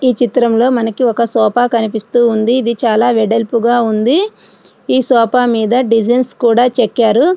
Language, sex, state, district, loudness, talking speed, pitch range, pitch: Telugu, female, Andhra Pradesh, Srikakulam, -12 LUFS, 140 wpm, 230-245 Hz, 235 Hz